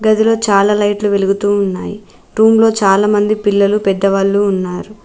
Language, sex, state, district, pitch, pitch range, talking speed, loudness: Telugu, female, Telangana, Mahabubabad, 205 Hz, 195-210 Hz, 140 wpm, -13 LUFS